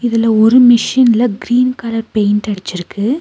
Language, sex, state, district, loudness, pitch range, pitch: Tamil, female, Tamil Nadu, Nilgiris, -12 LUFS, 210-245 Hz, 230 Hz